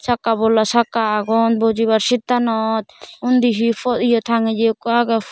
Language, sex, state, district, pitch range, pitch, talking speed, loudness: Chakma, female, Tripura, Dhalai, 225-240 Hz, 230 Hz, 160 wpm, -17 LUFS